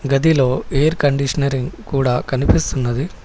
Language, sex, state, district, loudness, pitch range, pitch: Telugu, male, Telangana, Hyderabad, -18 LUFS, 130-145 Hz, 135 Hz